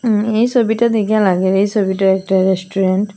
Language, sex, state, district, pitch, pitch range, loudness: Bengali, female, Assam, Hailakandi, 200 Hz, 190-220 Hz, -15 LUFS